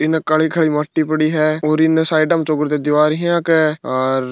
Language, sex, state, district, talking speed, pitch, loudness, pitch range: Marwari, male, Rajasthan, Churu, 220 wpm, 155 Hz, -16 LUFS, 150-160 Hz